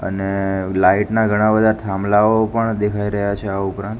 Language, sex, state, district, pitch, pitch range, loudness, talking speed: Gujarati, male, Gujarat, Gandhinagar, 105 Hz, 95-110 Hz, -18 LUFS, 180 wpm